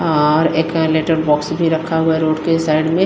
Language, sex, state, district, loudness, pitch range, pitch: Hindi, female, Himachal Pradesh, Shimla, -16 LUFS, 155-165 Hz, 160 Hz